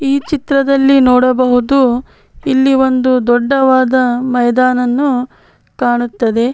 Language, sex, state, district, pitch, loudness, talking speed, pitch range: Kannada, female, Karnataka, Bellary, 255 Hz, -12 LUFS, 75 wpm, 245-270 Hz